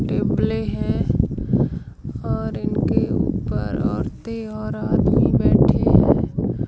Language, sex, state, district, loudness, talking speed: Hindi, female, Rajasthan, Jaisalmer, -20 LUFS, 90 wpm